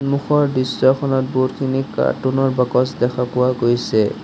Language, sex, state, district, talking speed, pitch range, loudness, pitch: Assamese, male, Assam, Sonitpur, 125 wpm, 125-135 Hz, -18 LUFS, 130 Hz